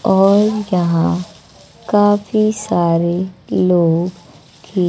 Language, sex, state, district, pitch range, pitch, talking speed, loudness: Hindi, female, Bihar, West Champaran, 170-205 Hz, 180 Hz, 75 wpm, -15 LUFS